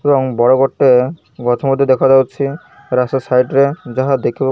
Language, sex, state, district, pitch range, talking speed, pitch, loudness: Odia, male, Odisha, Malkangiri, 125-140 Hz, 160 wpm, 135 Hz, -14 LUFS